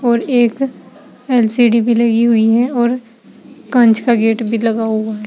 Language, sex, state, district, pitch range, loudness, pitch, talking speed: Hindi, female, Uttar Pradesh, Saharanpur, 225-240 Hz, -14 LUFS, 235 Hz, 170 wpm